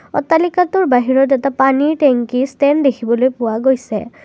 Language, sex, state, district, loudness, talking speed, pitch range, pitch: Assamese, female, Assam, Kamrup Metropolitan, -14 LUFS, 125 wpm, 250-290 Hz, 270 Hz